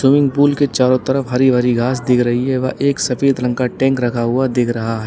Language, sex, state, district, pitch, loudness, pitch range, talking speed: Hindi, male, Uttar Pradesh, Lalitpur, 130 Hz, -16 LUFS, 125-135 Hz, 260 wpm